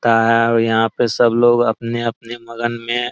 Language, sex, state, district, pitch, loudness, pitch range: Maithili, male, Bihar, Araria, 115 Hz, -16 LUFS, 115-120 Hz